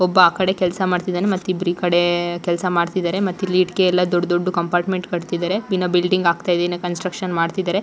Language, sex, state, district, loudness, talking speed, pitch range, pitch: Kannada, female, Karnataka, Shimoga, -19 LUFS, 175 wpm, 175-185 Hz, 180 Hz